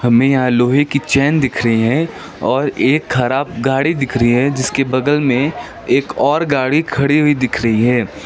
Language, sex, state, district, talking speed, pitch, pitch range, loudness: Hindi, male, West Bengal, Darjeeling, 180 wpm, 135 Hz, 120-145 Hz, -15 LUFS